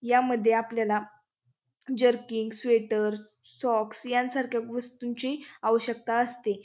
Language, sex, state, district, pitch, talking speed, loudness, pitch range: Marathi, female, Maharashtra, Pune, 230 Hz, 80 wpm, -28 LUFS, 215-245 Hz